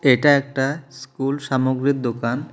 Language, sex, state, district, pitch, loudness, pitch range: Bengali, male, Tripura, South Tripura, 135 Hz, -20 LUFS, 130-140 Hz